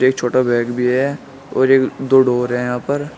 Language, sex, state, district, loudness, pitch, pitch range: Hindi, male, Uttar Pradesh, Shamli, -16 LUFS, 130 Hz, 125-135 Hz